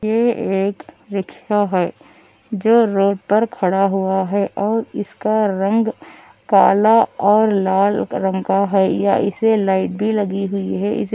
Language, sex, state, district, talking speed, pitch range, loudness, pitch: Hindi, female, Andhra Pradesh, Anantapur, 145 wpm, 195-220 Hz, -17 LUFS, 200 Hz